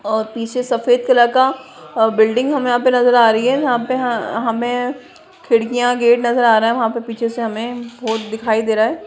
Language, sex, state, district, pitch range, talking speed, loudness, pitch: Hindi, female, Bihar, Jamui, 225-250 Hz, 205 wpm, -16 LUFS, 240 Hz